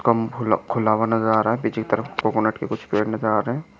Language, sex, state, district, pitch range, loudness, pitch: Hindi, male, Maharashtra, Chandrapur, 110-115 Hz, -22 LUFS, 110 Hz